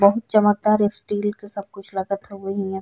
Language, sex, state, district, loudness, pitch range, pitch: Bhojpuri, female, Bihar, East Champaran, -22 LUFS, 195-210 Hz, 200 Hz